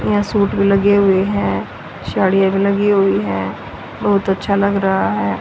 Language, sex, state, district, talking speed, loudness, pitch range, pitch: Hindi, female, Haryana, Rohtak, 165 wpm, -16 LUFS, 190-200 Hz, 195 Hz